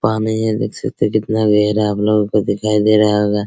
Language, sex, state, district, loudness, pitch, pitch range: Hindi, male, Bihar, Araria, -16 LUFS, 105 Hz, 105-110 Hz